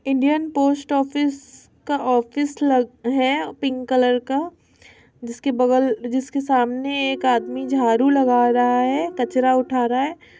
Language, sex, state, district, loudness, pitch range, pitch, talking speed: Hindi, female, Bihar, Muzaffarpur, -20 LUFS, 250-280 Hz, 260 Hz, 140 wpm